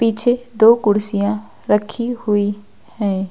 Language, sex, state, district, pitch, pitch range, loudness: Hindi, female, Uttar Pradesh, Lucknow, 215 Hz, 205-235 Hz, -17 LUFS